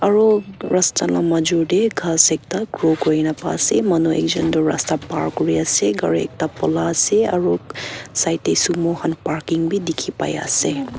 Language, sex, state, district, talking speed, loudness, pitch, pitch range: Nagamese, female, Nagaland, Kohima, 180 wpm, -18 LUFS, 165 Hz, 150-175 Hz